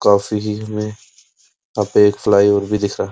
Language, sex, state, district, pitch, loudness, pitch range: Hindi, male, Uttar Pradesh, Muzaffarnagar, 105 Hz, -17 LUFS, 100-105 Hz